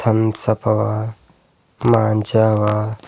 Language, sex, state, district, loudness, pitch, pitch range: Kannada, male, Karnataka, Bidar, -18 LUFS, 110 Hz, 105-110 Hz